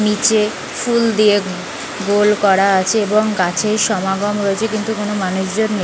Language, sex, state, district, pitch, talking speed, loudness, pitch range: Bengali, female, West Bengal, North 24 Parganas, 210 Hz, 155 wpm, -16 LUFS, 195-215 Hz